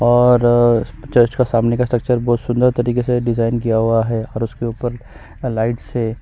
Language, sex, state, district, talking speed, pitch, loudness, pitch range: Hindi, male, Chhattisgarh, Kabirdham, 195 wpm, 120 Hz, -17 LUFS, 115-125 Hz